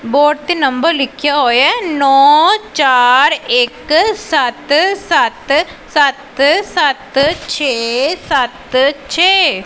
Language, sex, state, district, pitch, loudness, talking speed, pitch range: Punjabi, female, Punjab, Pathankot, 290 Hz, -12 LUFS, 95 wpm, 275-330 Hz